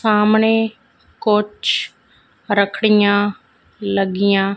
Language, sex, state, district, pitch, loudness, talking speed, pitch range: Punjabi, female, Punjab, Fazilka, 210 Hz, -17 LUFS, 50 wpm, 200-215 Hz